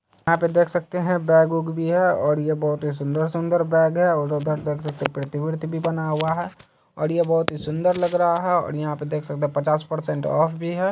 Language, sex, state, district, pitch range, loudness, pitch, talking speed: Hindi, male, Bihar, Saharsa, 150-170 Hz, -22 LUFS, 160 Hz, 240 wpm